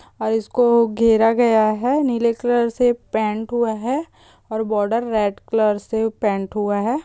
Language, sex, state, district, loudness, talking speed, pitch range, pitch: Hindi, female, Bihar, Bhagalpur, -19 LUFS, 160 wpm, 215-240 Hz, 225 Hz